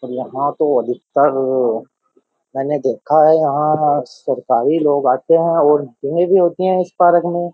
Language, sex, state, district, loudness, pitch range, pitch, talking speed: Hindi, male, Uttar Pradesh, Jyotiba Phule Nagar, -16 LUFS, 140-175 Hz, 150 Hz, 165 wpm